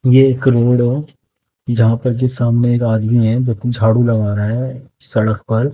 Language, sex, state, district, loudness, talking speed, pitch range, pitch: Hindi, male, Haryana, Jhajjar, -15 LUFS, 180 wpm, 110-130 Hz, 120 Hz